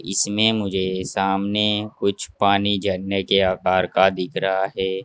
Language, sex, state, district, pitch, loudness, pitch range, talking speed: Hindi, male, Uttar Pradesh, Saharanpur, 95 Hz, -21 LUFS, 95-100 Hz, 145 wpm